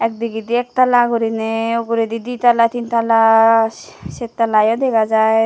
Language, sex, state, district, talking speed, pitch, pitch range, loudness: Chakma, female, Tripura, Dhalai, 120 wpm, 230 Hz, 225-235 Hz, -15 LUFS